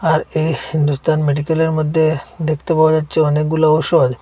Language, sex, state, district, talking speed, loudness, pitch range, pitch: Bengali, male, Assam, Hailakandi, 140 wpm, -16 LUFS, 150-160 Hz, 155 Hz